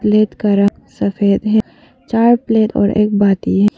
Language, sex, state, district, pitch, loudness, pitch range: Hindi, female, Arunachal Pradesh, Papum Pare, 210 Hz, -14 LUFS, 200-220 Hz